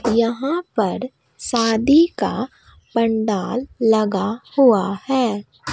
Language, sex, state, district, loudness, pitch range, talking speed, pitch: Hindi, female, Bihar, Katihar, -19 LUFS, 220-265 Hz, 85 wpm, 230 Hz